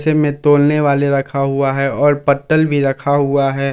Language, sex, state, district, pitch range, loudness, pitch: Hindi, male, Jharkhand, Palamu, 140-145 Hz, -15 LUFS, 140 Hz